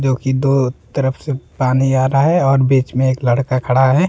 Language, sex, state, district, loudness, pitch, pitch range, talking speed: Hindi, male, Jharkhand, Deoghar, -16 LUFS, 130 Hz, 130-135 Hz, 220 wpm